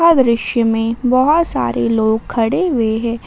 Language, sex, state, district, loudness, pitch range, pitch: Hindi, female, Jharkhand, Ranchi, -15 LUFS, 225-265 Hz, 235 Hz